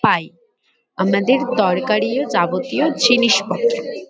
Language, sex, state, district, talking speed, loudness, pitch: Bengali, female, West Bengal, Kolkata, 90 wpm, -17 LUFS, 245 Hz